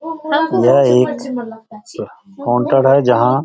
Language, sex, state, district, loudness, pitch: Hindi, male, Bihar, Darbhanga, -14 LUFS, 180 Hz